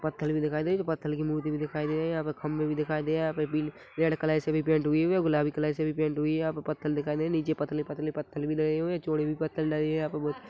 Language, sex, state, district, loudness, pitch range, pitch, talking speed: Hindi, male, Chhattisgarh, Rajnandgaon, -29 LUFS, 150-155 Hz, 155 Hz, 355 wpm